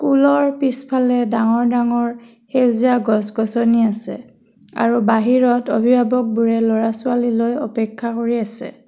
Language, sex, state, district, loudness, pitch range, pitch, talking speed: Assamese, female, Assam, Kamrup Metropolitan, -17 LUFS, 230-250 Hz, 235 Hz, 95 wpm